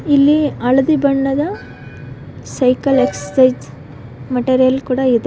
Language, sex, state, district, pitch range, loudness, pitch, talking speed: Kannada, female, Karnataka, Koppal, 250-280 Hz, -15 LUFS, 260 Hz, 90 wpm